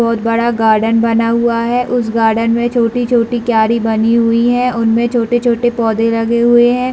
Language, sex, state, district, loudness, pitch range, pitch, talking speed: Hindi, female, Chhattisgarh, Bilaspur, -13 LUFS, 230-240 Hz, 230 Hz, 180 wpm